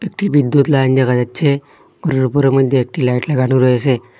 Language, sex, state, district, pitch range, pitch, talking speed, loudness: Bengali, male, Assam, Hailakandi, 130-145 Hz, 135 Hz, 170 wpm, -15 LUFS